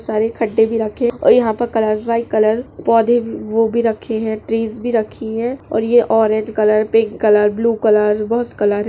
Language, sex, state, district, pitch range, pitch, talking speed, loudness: Hindi, female, Uttar Pradesh, Jalaun, 215-230 Hz, 225 Hz, 190 wpm, -16 LUFS